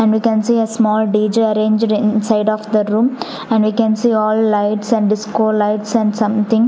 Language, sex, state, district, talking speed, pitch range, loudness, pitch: English, female, Punjab, Fazilka, 205 wpm, 215-225 Hz, -15 LUFS, 215 Hz